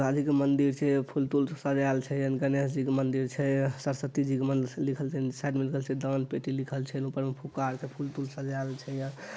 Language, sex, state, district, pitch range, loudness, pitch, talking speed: Maithili, male, Bihar, Madhepura, 135-140 Hz, -30 LUFS, 135 Hz, 235 wpm